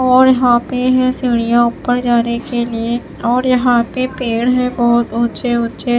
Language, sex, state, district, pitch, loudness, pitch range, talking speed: Hindi, female, Himachal Pradesh, Shimla, 240 Hz, -15 LUFS, 235-255 Hz, 170 wpm